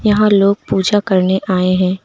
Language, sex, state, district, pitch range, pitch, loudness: Hindi, female, Uttar Pradesh, Lucknow, 185-205 Hz, 190 Hz, -14 LUFS